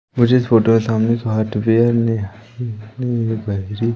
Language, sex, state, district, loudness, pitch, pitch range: Hindi, male, Madhya Pradesh, Umaria, -17 LUFS, 115 Hz, 110-120 Hz